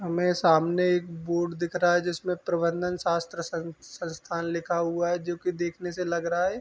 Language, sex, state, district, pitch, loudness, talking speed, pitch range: Hindi, male, Uttar Pradesh, Varanasi, 175 Hz, -27 LUFS, 190 wpm, 170-180 Hz